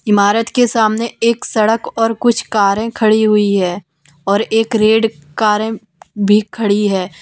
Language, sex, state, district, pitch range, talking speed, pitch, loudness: Hindi, female, Jharkhand, Deoghar, 200-225 Hz, 150 wpm, 215 Hz, -14 LUFS